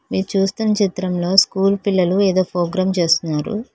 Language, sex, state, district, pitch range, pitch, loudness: Telugu, female, Telangana, Hyderabad, 180-195 Hz, 190 Hz, -17 LUFS